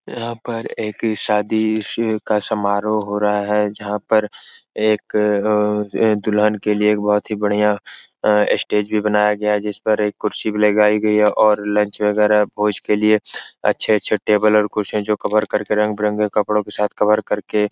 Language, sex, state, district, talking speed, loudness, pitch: Hindi, male, Uttar Pradesh, Etah, 185 wpm, -18 LUFS, 105 Hz